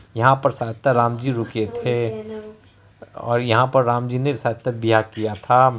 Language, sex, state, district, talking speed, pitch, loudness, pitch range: Hindi, male, Bihar, Araria, 175 wpm, 120 Hz, -20 LUFS, 110-125 Hz